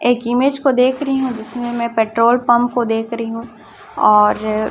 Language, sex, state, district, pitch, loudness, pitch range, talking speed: Hindi, female, Chhattisgarh, Raipur, 235 Hz, -16 LUFS, 225-250 Hz, 190 wpm